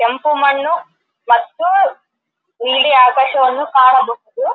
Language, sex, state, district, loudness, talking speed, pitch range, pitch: Kannada, female, Karnataka, Dharwad, -13 LUFS, 80 wpm, 260-345 Hz, 280 Hz